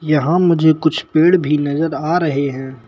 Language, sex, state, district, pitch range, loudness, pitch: Hindi, male, Madhya Pradesh, Bhopal, 145-165 Hz, -15 LUFS, 155 Hz